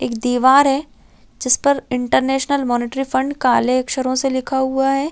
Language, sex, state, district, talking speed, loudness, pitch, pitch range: Hindi, female, Chhattisgarh, Raigarh, 175 wpm, -17 LUFS, 265 Hz, 250-270 Hz